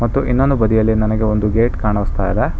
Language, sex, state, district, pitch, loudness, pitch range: Kannada, male, Karnataka, Bangalore, 110 Hz, -16 LUFS, 105-120 Hz